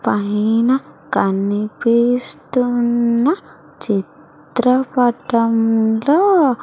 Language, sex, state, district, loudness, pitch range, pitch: Telugu, female, Andhra Pradesh, Sri Satya Sai, -17 LUFS, 215-250 Hz, 235 Hz